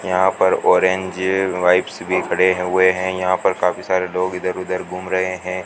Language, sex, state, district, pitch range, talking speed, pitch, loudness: Hindi, male, Rajasthan, Bikaner, 90-95 Hz, 190 wpm, 95 Hz, -18 LUFS